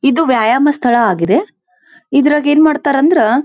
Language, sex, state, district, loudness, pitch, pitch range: Kannada, female, Karnataka, Belgaum, -12 LUFS, 290 Hz, 270-325 Hz